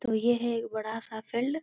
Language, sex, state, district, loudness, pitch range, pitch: Hindi, female, Bihar, Supaul, -31 LUFS, 220-240 Hz, 230 Hz